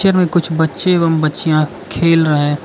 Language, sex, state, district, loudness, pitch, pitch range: Hindi, male, Arunachal Pradesh, Lower Dibang Valley, -14 LUFS, 165 Hz, 155-180 Hz